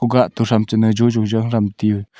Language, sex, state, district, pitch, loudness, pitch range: Wancho, male, Arunachal Pradesh, Longding, 110 Hz, -17 LUFS, 105-115 Hz